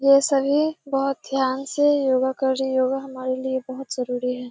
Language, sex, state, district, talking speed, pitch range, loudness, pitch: Hindi, female, Bihar, Kishanganj, 200 wpm, 260-275 Hz, -22 LUFS, 265 Hz